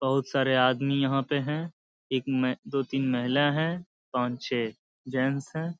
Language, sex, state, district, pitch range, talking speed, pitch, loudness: Hindi, male, Bihar, Saharsa, 130-145 Hz, 165 wpm, 135 Hz, -28 LUFS